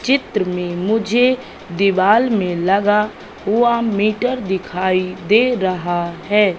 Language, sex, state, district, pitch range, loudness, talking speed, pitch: Hindi, female, Madhya Pradesh, Katni, 185-225 Hz, -17 LUFS, 110 wpm, 200 Hz